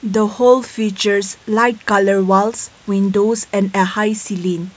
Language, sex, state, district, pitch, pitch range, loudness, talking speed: English, female, Nagaland, Kohima, 205 Hz, 195-220 Hz, -16 LUFS, 140 wpm